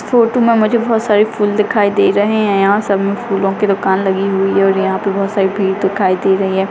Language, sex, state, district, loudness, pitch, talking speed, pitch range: Hindi, female, Rajasthan, Nagaur, -14 LUFS, 200 Hz, 270 wpm, 195-210 Hz